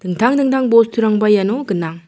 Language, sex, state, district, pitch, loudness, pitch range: Garo, female, Meghalaya, South Garo Hills, 220 Hz, -15 LUFS, 195-240 Hz